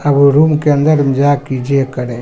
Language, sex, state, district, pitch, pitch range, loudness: Maithili, male, Bihar, Supaul, 140 Hz, 135-145 Hz, -12 LUFS